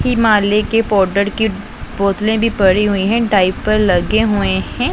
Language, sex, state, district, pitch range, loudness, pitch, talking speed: Hindi, female, Punjab, Pathankot, 195-220 Hz, -14 LUFS, 205 Hz, 170 wpm